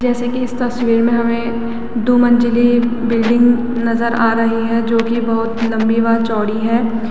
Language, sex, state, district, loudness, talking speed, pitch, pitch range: Hindi, female, Uttarakhand, Tehri Garhwal, -15 LUFS, 170 wpm, 230 Hz, 230-240 Hz